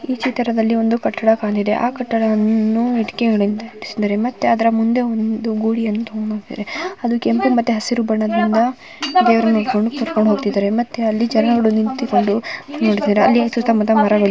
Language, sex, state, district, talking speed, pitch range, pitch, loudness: Kannada, female, Karnataka, Mysore, 125 wpm, 215-240 Hz, 225 Hz, -17 LUFS